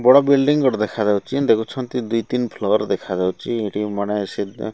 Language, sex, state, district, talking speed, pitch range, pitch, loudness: Odia, male, Odisha, Malkangiri, 175 wpm, 105-125 Hz, 115 Hz, -20 LUFS